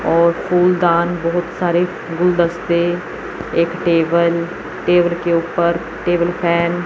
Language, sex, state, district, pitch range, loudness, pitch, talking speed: Hindi, male, Chandigarh, Chandigarh, 170-175 Hz, -17 LUFS, 170 Hz, 115 wpm